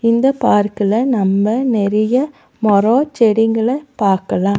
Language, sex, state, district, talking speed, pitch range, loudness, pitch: Tamil, female, Tamil Nadu, Nilgiris, 90 wpm, 205-250 Hz, -15 LUFS, 225 Hz